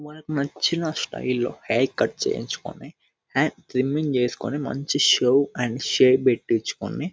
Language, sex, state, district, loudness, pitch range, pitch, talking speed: Telugu, male, Telangana, Nalgonda, -23 LUFS, 125-150 Hz, 140 Hz, 135 wpm